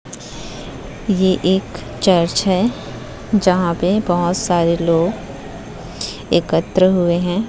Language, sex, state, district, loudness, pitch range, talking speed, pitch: Hindi, male, Chhattisgarh, Raipur, -17 LUFS, 170-195 Hz, 105 wpm, 180 Hz